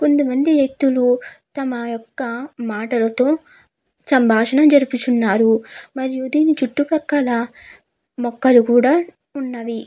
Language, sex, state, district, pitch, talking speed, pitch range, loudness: Telugu, female, Andhra Pradesh, Chittoor, 260 Hz, 90 wpm, 235-285 Hz, -17 LUFS